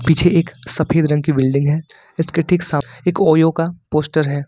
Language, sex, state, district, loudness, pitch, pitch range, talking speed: Hindi, male, Jharkhand, Ranchi, -17 LUFS, 160 Hz, 150-165 Hz, 200 wpm